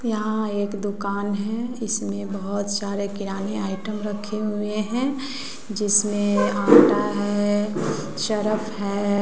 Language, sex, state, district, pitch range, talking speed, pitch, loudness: Hindi, female, Bihar, West Champaran, 200-215 Hz, 110 wpm, 205 Hz, -23 LUFS